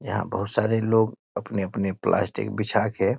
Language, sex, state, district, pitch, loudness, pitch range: Hindi, male, Bihar, East Champaran, 105 Hz, -24 LUFS, 100-110 Hz